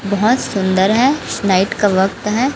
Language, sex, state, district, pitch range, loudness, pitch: Hindi, female, Chhattisgarh, Raipur, 195-235 Hz, -15 LUFS, 205 Hz